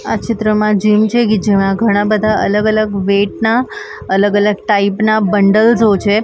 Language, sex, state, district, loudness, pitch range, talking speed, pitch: Gujarati, female, Maharashtra, Mumbai Suburban, -13 LUFS, 205-215 Hz, 175 wpm, 210 Hz